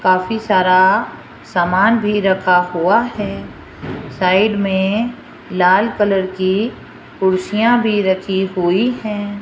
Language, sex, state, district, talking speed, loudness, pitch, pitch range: Hindi, female, Rajasthan, Jaipur, 110 wpm, -16 LUFS, 190 Hz, 185-210 Hz